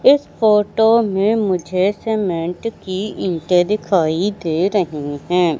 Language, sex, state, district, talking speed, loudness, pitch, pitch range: Hindi, male, Madhya Pradesh, Katni, 120 wpm, -18 LUFS, 190 Hz, 175-215 Hz